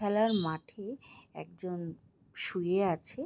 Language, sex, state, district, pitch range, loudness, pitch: Bengali, female, West Bengal, Jalpaiguri, 175-215 Hz, -33 LUFS, 190 Hz